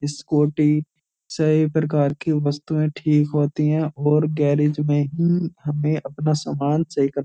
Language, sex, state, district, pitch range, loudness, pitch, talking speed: Hindi, male, Uttar Pradesh, Jyotiba Phule Nagar, 145-155 Hz, -21 LUFS, 150 Hz, 150 wpm